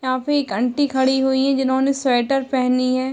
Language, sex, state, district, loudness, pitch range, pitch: Hindi, female, Uttar Pradesh, Hamirpur, -19 LUFS, 255-275 Hz, 265 Hz